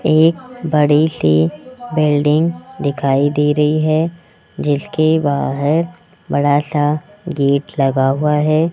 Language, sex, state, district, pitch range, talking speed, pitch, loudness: Hindi, male, Rajasthan, Jaipur, 145-160 Hz, 110 wpm, 150 Hz, -16 LUFS